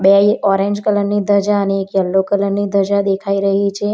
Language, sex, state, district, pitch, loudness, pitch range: Gujarati, female, Gujarat, Valsad, 200 Hz, -15 LUFS, 195-205 Hz